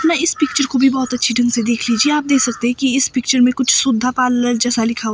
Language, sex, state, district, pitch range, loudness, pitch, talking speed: Hindi, female, Himachal Pradesh, Shimla, 240-270 Hz, -15 LUFS, 255 Hz, 280 wpm